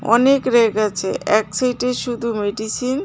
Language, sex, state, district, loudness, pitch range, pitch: Bengali, female, West Bengal, Cooch Behar, -18 LUFS, 215-250 Hz, 235 Hz